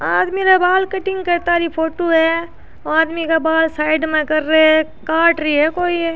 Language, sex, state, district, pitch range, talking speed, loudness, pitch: Rajasthani, female, Rajasthan, Churu, 315-345 Hz, 205 wpm, -16 LUFS, 325 Hz